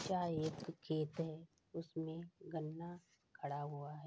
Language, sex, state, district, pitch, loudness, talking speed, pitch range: Hindi, female, Bihar, Saharsa, 160 Hz, -45 LUFS, 130 wpm, 155-170 Hz